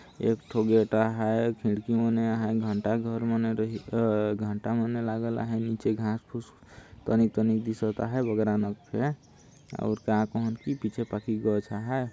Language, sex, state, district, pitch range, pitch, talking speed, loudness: Sadri, male, Chhattisgarh, Jashpur, 110-115 Hz, 110 Hz, 175 wpm, -28 LUFS